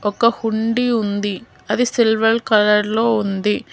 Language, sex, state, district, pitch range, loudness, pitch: Telugu, female, Telangana, Hyderabad, 210-230 Hz, -17 LUFS, 220 Hz